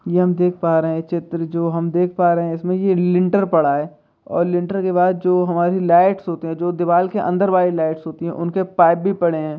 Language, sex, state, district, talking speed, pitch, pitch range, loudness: Hindi, male, Bihar, Begusarai, 245 wpm, 175 Hz, 165-180 Hz, -18 LUFS